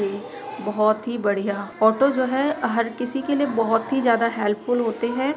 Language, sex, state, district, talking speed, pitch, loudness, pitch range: Hindi, female, Uttar Pradesh, Jalaun, 180 wpm, 230 Hz, -22 LUFS, 215-260 Hz